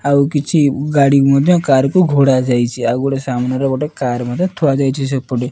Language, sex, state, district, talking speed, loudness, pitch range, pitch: Odia, male, Odisha, Nuapada, 165 wpm, -14 LUFS, 130-145 Hz, 135 Hz